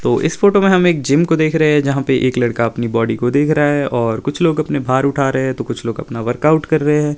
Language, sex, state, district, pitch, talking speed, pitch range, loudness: Hindi, male, Himachal Pradesh, Shimla, 140 Hz, 310 wpm, 120-155 Hz, -15 LUFS